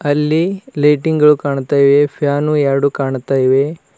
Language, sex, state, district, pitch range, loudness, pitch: Kannada, male, Karnataka, Bidar, 140-150 Hz, -14 LUFS, 145 Hz